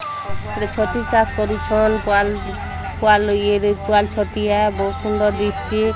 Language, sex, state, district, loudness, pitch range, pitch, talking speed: Odia, female, Odisha, Sambalpur, -19 LUFS, 205-215 Hz, 205 Hz, 120 wpm